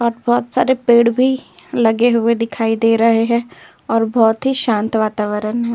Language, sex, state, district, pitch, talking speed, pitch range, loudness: Hindi, female, Uttar Pradesh, Jyotiba Phule Nagar, 230 Hz, 175 wpm, 225-240 Hz, -16 LUFS